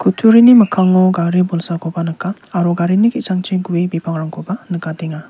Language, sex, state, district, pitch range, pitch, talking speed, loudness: Garo, male, Meghalaya, South Garo Hills, 170-195 Hz, 180 Hz, 125 wpm, -15 LUFS